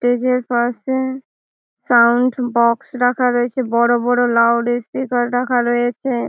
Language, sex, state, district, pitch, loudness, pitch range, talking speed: Bengali, female, West Bengal, Malda, 245 Hz, -17 LUFS, 240-250 Hz, 125 wpm